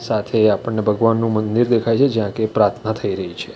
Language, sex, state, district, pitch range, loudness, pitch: Gujarati, male, Gujarat, Valsad, 110-115 Hz, -18 LUFS, 110 Hz